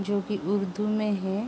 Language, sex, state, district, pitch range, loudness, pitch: Hindi, female, Uttar Pradesh, Jalaun, 195-210 Hz, -28 LUFS, 205 Hz